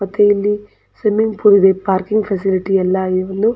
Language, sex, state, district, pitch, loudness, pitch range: Kannada, female, Karnataka, Dakshina Kannada, 200 Hz, -15 LUFS, 190-210 Hz